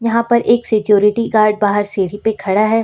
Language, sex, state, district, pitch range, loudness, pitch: Hindi, female, Uttar Pradesh, Lucknow, 205-230 Hz, -14 LUFS, 215 Hz